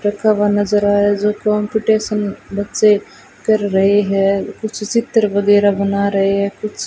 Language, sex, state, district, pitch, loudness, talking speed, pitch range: Hindi, female, Rajasthan, Bikaner, 205 Hz, -16 LUFS, 165 wpm, 200-215 Hz